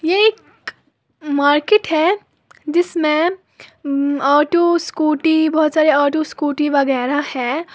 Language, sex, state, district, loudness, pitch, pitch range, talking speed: Hindi, female, Uttar Pradesh, Lalitpur, -16 LUFS, 310 Hz, 285-335 Hz, 110 wpm